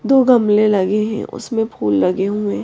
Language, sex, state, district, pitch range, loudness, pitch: Hindi, female, Madhya Pradesh, Bhopal, 190-225 Hz, -16 LUFS, 210 Hz